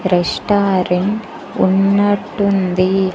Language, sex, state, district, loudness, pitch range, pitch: Telugu, female, Andhra Pradesh, Sri Satya Sai, -16 LUFS, 185-205 Hz, 195 Hz